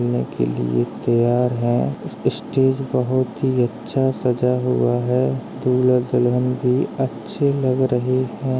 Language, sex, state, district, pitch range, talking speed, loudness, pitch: Hindi, male, Uttar Pradesh, Jalaun, 120-130 Hz, 140 wpm, -20 LUFS, 125 Hz